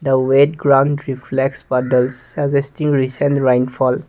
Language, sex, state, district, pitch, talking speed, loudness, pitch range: English, male, Assam, Kamrup Metropolitan, 135 Hz, 130 wpm, -16 LUFS, 130-140 Hz